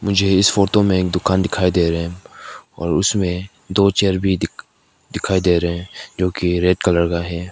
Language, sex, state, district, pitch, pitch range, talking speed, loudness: Hindi, male, Nagaland, Kohima, 90 Hz, 90-100 Hz, 200 wpm, -18 LUFS